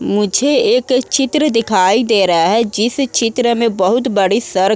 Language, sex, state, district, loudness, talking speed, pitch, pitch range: Hindi, female, Uttar Pradesh, Muzaffarnagar, -14 LUFS, 175 wpm, 230 Hz, 205-255 Hz